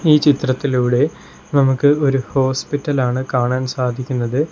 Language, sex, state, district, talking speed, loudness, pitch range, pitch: Malayalam, male, Kerala, Kollam, 95 wpm, -17 LUFS, 125-145 Hz, 130 Hz